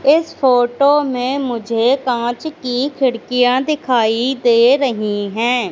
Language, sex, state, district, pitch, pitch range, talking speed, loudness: Hindi, female, Madhya Pradesh, Katni, 250 Hz, 240-270 Hz, 115 wpm, -16 LUFS